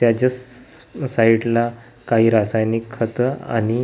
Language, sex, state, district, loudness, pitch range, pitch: Marathi, male, Maharashtra, Gondia, -19 LUFS, 115-125 Hz, 115 Hz